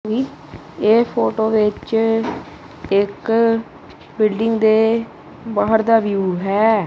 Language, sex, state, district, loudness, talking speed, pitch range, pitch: Punjabi, male, Punjab, Kapurthala, -18 LUFS, 85 wpm, 210-225 Hz, 220 Hz